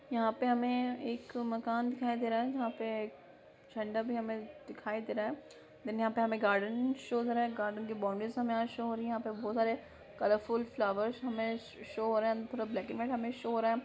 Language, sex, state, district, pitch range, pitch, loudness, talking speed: Hindi, female, Bihar, Purnia, 220-240 Hz, 230 Hz, -35 LUFS, 245 wpm